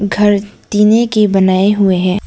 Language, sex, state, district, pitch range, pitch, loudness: Hindi, female, Arunachal Pradesh, Lower Dibang Valley, 190-210 Hz, 205 Hz, -12 LUFS